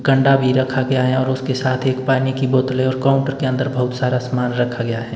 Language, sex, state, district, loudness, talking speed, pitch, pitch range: Hindi, male, Himachal Pradesh, Shimla, -18 LUFS, 255 wpm, 130 Hz, 125-130 Hz